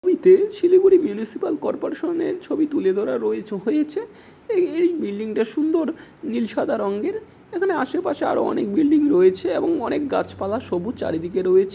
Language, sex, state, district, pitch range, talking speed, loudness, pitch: Bengali, male, West Bengal, Jalpaiguri, 290-370 Hz, 155 wpm, -21 LUFS, 335 Hz